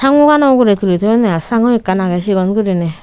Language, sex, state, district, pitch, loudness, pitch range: Chakma, female, Tripura, Unakoti, 205 Hz, -12 LUFS, 185-235 Hz